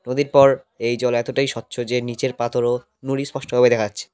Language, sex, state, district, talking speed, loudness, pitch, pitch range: Bengali, male, West Bengal, Cooch Behar, 205 wpm, -20 LUFS, 125 Hz, 120-135 Hz